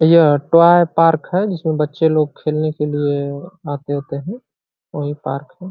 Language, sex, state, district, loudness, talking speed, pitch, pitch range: Hindi, male, Uttar Pradesh, Ghazipur, -17 LUFS, 180 wpm, 155 Hz, 145-170 Hz